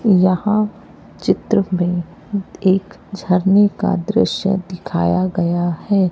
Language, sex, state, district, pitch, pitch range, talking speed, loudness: Hindi, male, Chhattisgarh, Raipur, 190 Hz, 180-200 Hz, 100 wpm, -18 LUFS